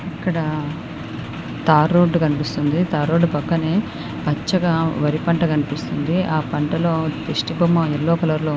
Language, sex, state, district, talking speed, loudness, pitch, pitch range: Telugu, female, Andhra Pradesh, Anantapur, 120 wpm, -20 LUFS, 160 Hz, 150-170 Hz